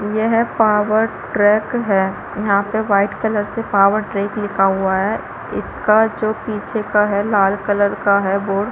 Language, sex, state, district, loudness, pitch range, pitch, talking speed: Hindi, female, Chhattisgarh, Balrampur, -17 LUFS, 200-220 Hz, 210 Hz, 170 wpm